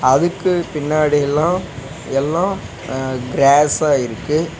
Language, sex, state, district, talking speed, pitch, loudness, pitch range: Tamil, male, Tamil Nadu, Nilgiris, 90 wpm, 150 Hz, -17 LUFS, 135-165 Hz